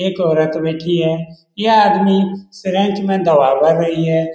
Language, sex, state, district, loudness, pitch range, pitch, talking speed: Hindi, male, Bihar, Lakhisarai, -15 LUFS, 160-195 Hz, 175 Hz, 165 wpm